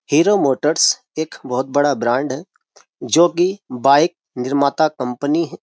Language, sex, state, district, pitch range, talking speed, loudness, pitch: Hindi, male, Uttar Pradesh, Jyotiba Phule Nagar, 130-160 Hz, 140 wpm, -17 LUFS, 145 Hz